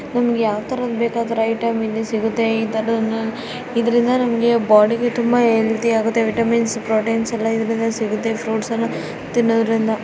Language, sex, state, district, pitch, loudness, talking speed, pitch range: Kannada, female, Karnataka, Shimoga, 225 Hz, -19 LUFS, 130 wpm, 225-235 Hz